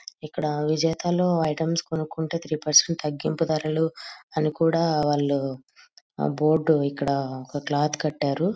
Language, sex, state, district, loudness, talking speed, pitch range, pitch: Telugu, female, Andhra Pradesh, Guntur, -24 LUFS, 120 wpm, 145-160 Hz, 155 Hz